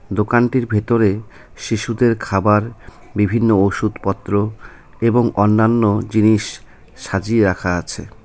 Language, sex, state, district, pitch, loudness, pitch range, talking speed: Bengali, male, West Bengal, Cooch Behar, 110 Hz, -17 LUFS, 100-115 Hz, 95 wpm